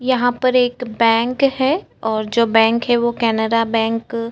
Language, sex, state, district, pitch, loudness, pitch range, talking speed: Hindi, female, Chhattisgarh, Korba, 235 Hz, -17 LUFS, 225-245 Hz, 180 wpm